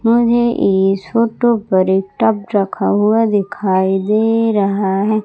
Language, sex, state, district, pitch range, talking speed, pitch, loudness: Hindi, female, Madhya Pradesh, Umaria, 195-225 Hz, 135 wpm, 210 Hz, -15 LUFS